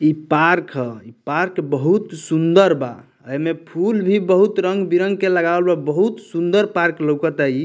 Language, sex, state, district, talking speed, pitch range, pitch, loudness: Bhojpuri, male, Bihar, Muzaffarpur, 165 wpm, 150-190 Hz, 170 Hz, -18 LUFS